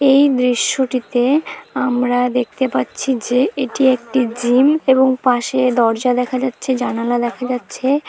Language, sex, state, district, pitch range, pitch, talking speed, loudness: Bengali, female, West Bengal, Dakshin Dinajpur, 245-265 Hz, 255 Hz, 140 wpm, -17 LUFS